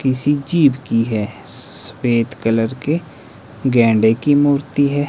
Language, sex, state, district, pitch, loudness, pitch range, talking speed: Hindi, male, Himachal Pradesh, Shimla, 130 Hz, -17 LUFS, 115-145 Hz, 130 wpm